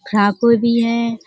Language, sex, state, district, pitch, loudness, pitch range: Hindi, female, Uttar Pradesh, Budaun, 235 Hz, -15 LUFS, 225-235 Hz